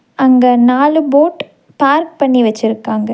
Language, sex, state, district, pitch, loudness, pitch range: Tamil, female, Tamil Nadu, Nilgiris, 265 Hz, -12 LUFS, 240-290 Hz